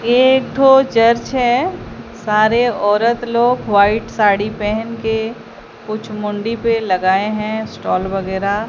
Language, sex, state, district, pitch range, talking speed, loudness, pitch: Hindi, female, Odisha, Sambalpur, 210-235 Hz, 130 wpm, -16 LUFS, 220 Hz